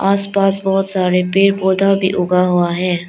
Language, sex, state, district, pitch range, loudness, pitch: Hindi, female, Arunachal Pradesh, Lower Dibang Valley, 180-195 Hz, -15 LUFS, 190 Hz